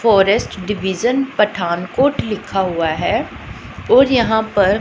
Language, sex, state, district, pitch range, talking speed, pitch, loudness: Hindi, female, Punjab, Pathankot, 190-235 Hz, 110 wpm, 210 Hz, -16 LUFS